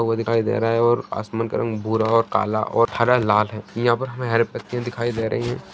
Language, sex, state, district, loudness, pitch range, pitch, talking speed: Hindi, male, Bihar, Jamui, -21 LUFS, 110-120 Hz, 115 Hz, 270 wpm